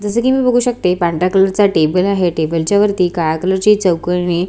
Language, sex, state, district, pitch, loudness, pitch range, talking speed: Marathi, female, Maharashtra, Solapur, 185 Hz, -14 LUFS, 175-205 Hz, 225 wpm